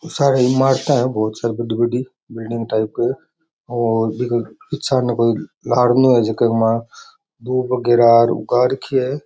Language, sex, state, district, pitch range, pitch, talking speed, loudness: Rajasthani, male, Rajasthan, Nagaur, 115-130 Hz, 120 Hz, 130 wpm, -17 LUFS